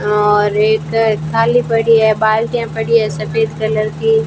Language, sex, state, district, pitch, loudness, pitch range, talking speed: Hindi, female, Rajasthan, Bikaner, 215 Hz, -14 LUFS, 155-225 Hz, 170 wpm